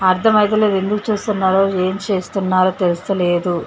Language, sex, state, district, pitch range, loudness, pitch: Telugu, female, Telangana, Karimnagar, 185-210 Hz, -17 LUFS, 190 Hz